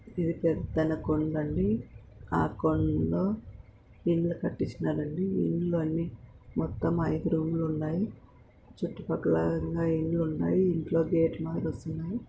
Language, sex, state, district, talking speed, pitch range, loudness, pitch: Telugu, female, Andhra Pradesh, Anantapur, 120 wpm, 120-170 Hz, -30 LUFS, 160 Hz